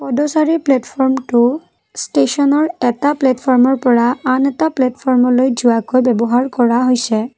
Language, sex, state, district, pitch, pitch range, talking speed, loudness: Assamese, female, Assam, Kamrup Metropolitan, 255 Hz, 245-275 Hz, 105 wpm, -14 LUFS